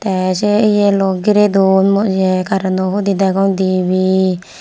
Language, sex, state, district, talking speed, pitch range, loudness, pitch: Chakma, female, Tripura, Unakoti, 145 wpm, 185-200 Hz, -14 LUFS, 190 Hz